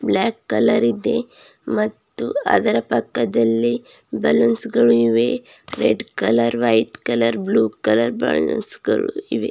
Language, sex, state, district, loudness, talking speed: Kannada, female, Karnataka, Bidar, -19 LUFS, 115 wpm